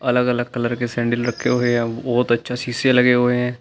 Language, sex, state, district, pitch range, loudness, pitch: Hindi, male, Uttar Pradesh, Shamli, 120-125 Hz, -19 LUFS, 120 Hz